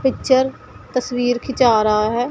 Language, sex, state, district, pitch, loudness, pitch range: Hindi, female, Punjab, Pathankot, 245 Hz, -18 LUFS, 235-260 Hz